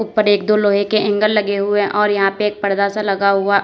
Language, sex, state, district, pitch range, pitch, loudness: Hindi, female, Uttar Pradesh, Lalitpur, 200-210 Hz, 205 Hz, -16 LUFS